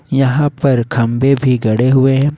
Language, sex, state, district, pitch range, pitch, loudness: Hindi, male, Jharkhand, Ranchi, 125-140 Hz, 135 Hz, -13 LUFS